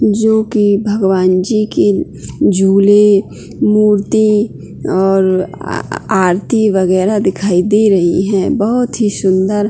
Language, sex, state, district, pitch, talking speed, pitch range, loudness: Hindi, female, Uttarakhand, Tehri Garhwal, 200 Hz, 110 wpm, 190-215 Hz, -12 LUFS